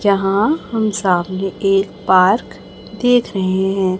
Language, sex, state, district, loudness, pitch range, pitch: Hindi, male, Chhattisgarh, Raipur, -16 LUFS, 190-215 Hz, 195 Hz